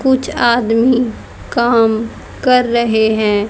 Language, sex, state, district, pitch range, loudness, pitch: Hindi, female, Haryana, Charkhi Dadri, 220-245 Hz, -14 LUFS, 235 Hz